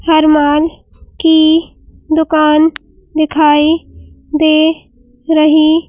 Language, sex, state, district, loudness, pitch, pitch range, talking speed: Hindi, female, Madhya Pradesh, Bhopal, -11 LUFS, 310 Hz, 300-320 Hz, 60 wpm